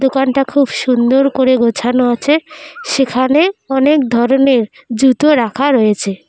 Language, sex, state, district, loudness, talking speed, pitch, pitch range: Bengali, female, West Bengal, Cooch Behar, -13 LUFS, 115 wpm, 265 Hz, 240-280 Hz